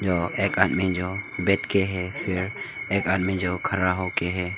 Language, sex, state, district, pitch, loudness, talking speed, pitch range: Hindi, male, Arunachal Pradesh, Longding, 95 Hz, -25 LUFS, 170 wpm, 90-95 Hz